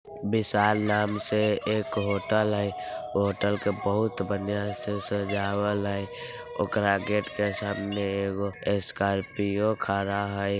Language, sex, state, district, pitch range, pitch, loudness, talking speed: Bajjika, female, Bihar, Vaishali, 100-105 Hz, 100 Hz, -27 LUFS, 125 wpm